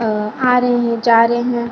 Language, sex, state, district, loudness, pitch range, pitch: Hindi, female, Bihar, Lakhisarai, -15 LUFS, 230-245 Hz, 235 Hz